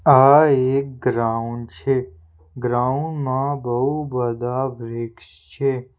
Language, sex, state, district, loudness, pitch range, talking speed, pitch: Gujarati, male, Gujarat, Valsad, -20 LUFS, 115-135 Hz, 100 wpm, 125 Hz